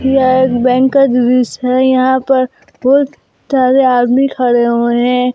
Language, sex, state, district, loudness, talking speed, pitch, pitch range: Hindi, female, Jharkhand, Garhwa, -12 LUFS, 155 wpm, 255 Hz, 250-265 Hz